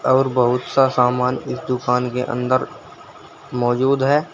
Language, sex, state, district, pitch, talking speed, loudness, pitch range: Hindi, male, Uttar Pradesh, Saharanpur, 125 Hz, 140 wpm, -19 LUFS, 125-135 Hz